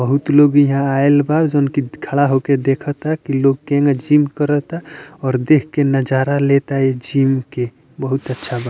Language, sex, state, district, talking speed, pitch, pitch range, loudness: Bhojpuri, male, Bihar, Muzaffarpur, 180 wpm, 140 Hz, 135-145 Hz, -16 LUFS